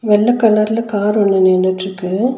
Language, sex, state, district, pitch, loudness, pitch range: Tamil, female, Tamil Nadu, Nilgiris, 210 Hz, -14 LUFS, 190-225 Hz